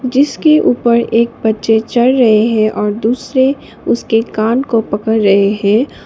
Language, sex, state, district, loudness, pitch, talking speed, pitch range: Hindi, female, Sikkim, Gangtok, -13 LUFS, 225 Hz, 150 wpm, 215-250 Hz